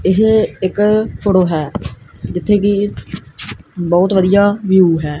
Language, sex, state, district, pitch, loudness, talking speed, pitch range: Punjabi, male, Punjab, Kapurthala, 190 Hz, -14 LUFS, 115 wpm, 170-205 Hz